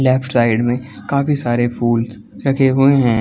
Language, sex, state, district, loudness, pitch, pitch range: Hindi, male, Chhattisgarh, Balrampur, -16 LUFS, 125 Hz, 120-135 Hz